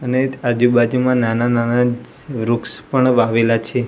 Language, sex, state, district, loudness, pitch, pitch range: Gujarati, male, Gujarat, Gandhinagar, -17 LUFS, 120 Hz, 115-125 Hz